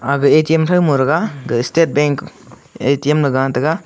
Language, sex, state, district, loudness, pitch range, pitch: Wancho, male, Arunachal Pradesh, Longding, -15 LUFS, 135-160 Hz, 145 Hz